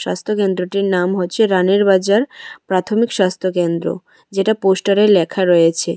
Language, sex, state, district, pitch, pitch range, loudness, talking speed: Bengali, female, Tripura, West Tripura, 190 Hz, 180-200 Hz, -16 LUFS, 120 wpm